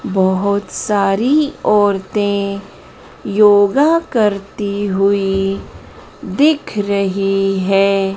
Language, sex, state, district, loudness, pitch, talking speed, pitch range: Hindi, female, Madhya Pradesh, Dhar, -15 LUFS, 200 Hz, 65 wpm, 195-210 Hz